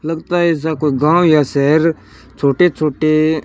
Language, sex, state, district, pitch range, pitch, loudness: Hindi, male, Rajasthan, Bikaner, 150-165 Hz, 155 Hz, -14 LUFS